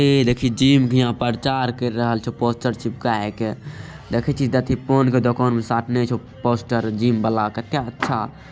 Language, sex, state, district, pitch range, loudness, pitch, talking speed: Angika, male, Bihar, Begusarai, 115-130 Hz, -20 LUFS, 120 Hz, 190 wpm